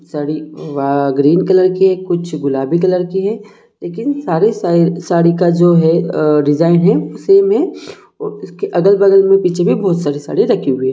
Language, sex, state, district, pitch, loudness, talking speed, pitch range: Hindi, male, Jharkhand, Jamtara, 175 Hz, -13 LUFS, 185 wpm, 150-190 Hz